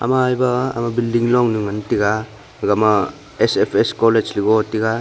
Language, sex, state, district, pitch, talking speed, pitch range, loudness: Wancho, male, Arunachal Pradesh, Longding, 115 Hz, 130 wpm, 105-120 Hz, -18 LUFS